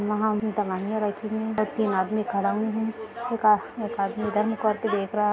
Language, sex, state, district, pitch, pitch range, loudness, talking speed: Hindi, female, Bihar, Gaya, 215 Hz, 210-220 Hz, -26 LUFS, 235 wpm